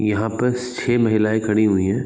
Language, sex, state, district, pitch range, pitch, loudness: Hindi, male, Chhattisgarh, Raigarh, 105-120 Hz, 110 Hz, -19 LUFS